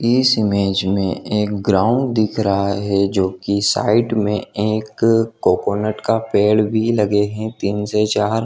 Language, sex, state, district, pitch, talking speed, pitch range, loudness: Hindi, male, Jharkhand, Jamtara, 105 Hz, 155 wpm, 100-110 Hz, -18 LUFS